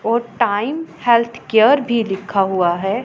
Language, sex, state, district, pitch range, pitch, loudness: Hindi, female, Punjab, Pathankot, 195-235 Hz, 230 Hz, -17 LUFS